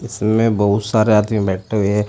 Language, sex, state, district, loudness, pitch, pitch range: Hindi, male, Uttar Pradesh, Shamli, -16 LUFS, 105 Hz, 105-110 Hz